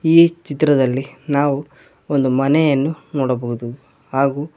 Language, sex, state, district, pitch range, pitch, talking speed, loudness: Kannada, male, Karnataka, Koppal, 135-150 Hz, 140 Hz, 90 wpm, -18 LUFS